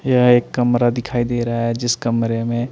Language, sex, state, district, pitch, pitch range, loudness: Hindi, male, Chandigarh, Chandigarh, 120 Hz, 115-125 Hz, -18 LUFS